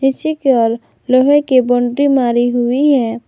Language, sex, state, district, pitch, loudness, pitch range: Hindi, female, Jharkhand, Garhwa, 255 Hz, -13 LUFS, 240-280 Hz